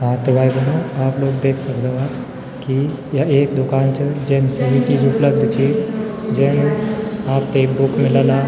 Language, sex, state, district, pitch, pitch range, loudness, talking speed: Garhwali, male, Uttarakhand, Tehri Garhwal, 135 Hz, 130-140 Hz, -17 LUFS, 165 wpm